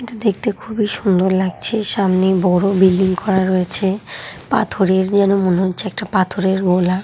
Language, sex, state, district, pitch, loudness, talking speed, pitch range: Bengali, female, West Bengal, Jhargram, 190 Hz, -16 LUFS, 145 wpm, 185-200 Hz